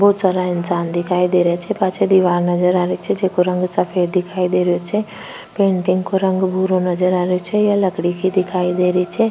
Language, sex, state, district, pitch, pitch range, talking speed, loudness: Rajasthani, female, Rajasthan, Nagaur, 180 Hz, 180-190 Hz, 225 wpm, -17 LUFS